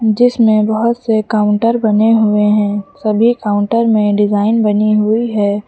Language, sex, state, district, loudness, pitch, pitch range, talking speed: Hindi, male, Uttar Pradesh, Lucknow, -13 LUFS, 215 Hz, 210-225 Hz, 150 wpm